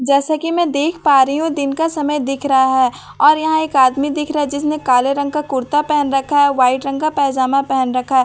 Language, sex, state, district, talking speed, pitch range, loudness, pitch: Hindi, female, Bihar, Katihar, 285 wpm, 265-300 Hz, -16 LUFS, 285 Hz